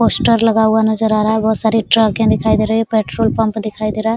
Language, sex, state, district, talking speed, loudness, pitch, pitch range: Hindi, female, Bihar, Araria, 285 wpm, -14 LUFS, 220 Hz, 220-225 Hz